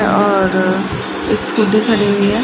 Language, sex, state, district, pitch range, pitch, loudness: Hindi, female, Bihar, Gaya, 195-215 Hz, 205 Hz, -15 LUFS